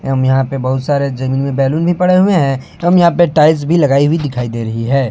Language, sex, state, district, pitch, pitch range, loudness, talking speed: Hindi, male, Jharkhand, Palamu, 140 Hz, 130-170 Hz, -13 LUFS, 270 wpm